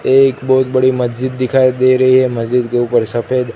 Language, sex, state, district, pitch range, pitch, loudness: Hindi, male, Gujarat, Gandhinagar, 120-130 Hz, 130 Hz, -13 LUFS